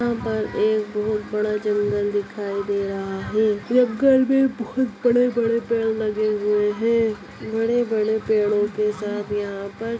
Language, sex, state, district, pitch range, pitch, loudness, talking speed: Hindi, female, Bihar, Muzaffarpur, 210-230 Hz, 215 Hz, -22 LUFS, 145 wpm